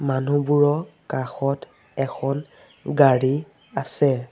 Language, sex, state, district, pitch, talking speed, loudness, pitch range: Assamese, male, Assam, Sonitpur, 140 Hz, 70 wpm, -22 LUFS, 135-145 Hz